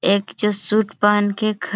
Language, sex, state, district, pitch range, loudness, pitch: Hindi, female, Bihar, Jamui, 200-210 Hz, -18 LUFS, 205 Hz